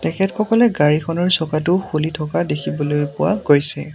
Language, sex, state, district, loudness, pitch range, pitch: Assamese, male, Assam, Sonitpur, -17 LUFS, 150-185 Hz, 155 Hz